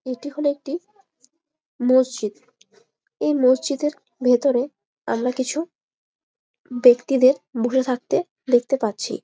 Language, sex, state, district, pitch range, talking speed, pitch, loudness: Bengali, female, West Bengal, Jalpaiguri, 250-295 Hz, 95 wpm, 260 Hz, -21 LUFS